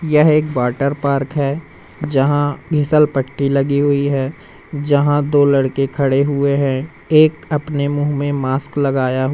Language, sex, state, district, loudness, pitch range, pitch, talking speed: Hindi, male, Madhya Pradesh, Umaria, -16 LUFS, 135-145 Hz, 140 Hz, 155 wpm